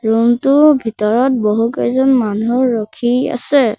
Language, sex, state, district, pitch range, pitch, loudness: Assamese, male, Assam, Sonitpur, 225-260 Hz, 240 Hz, -14 LUFS